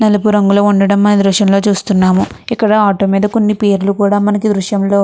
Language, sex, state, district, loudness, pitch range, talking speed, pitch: Telugu, female, Andhra Pradesh, Krishna, -12 LUFS, 200-210 Hz, 200 wpm, 205 Hz